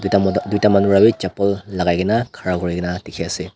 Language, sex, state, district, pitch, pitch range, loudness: Nagamese, male, Nagaland, Dimapur, 95 Hz, 90-100 Hz, -18 LUFS